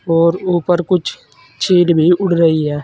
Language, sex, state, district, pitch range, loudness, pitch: Hindi, male, Uttar Pradesh, Saharanpur, 165-180 Hz, -14 LUFS, 170 Hz